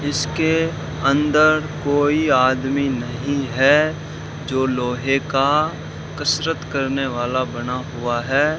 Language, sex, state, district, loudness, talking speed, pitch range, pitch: Hindi, male, Rajasthan, Bikaner, -19 LUFS, 105 wpm, 130-150 Hz, 140 Hz